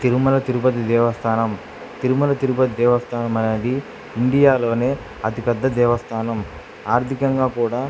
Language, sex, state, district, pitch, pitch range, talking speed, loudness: Telugu, male, Andhra Pradesh, Krishna, 120 Hz, 115-130 Hz, 105 wpm, -19 LUFS